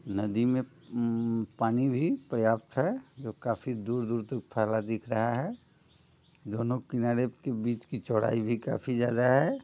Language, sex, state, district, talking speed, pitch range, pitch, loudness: Hindi, male, Bihar, Muzaffarpur, 155 wpm, 115-130 Hz, 120 Hz, -30 LUFS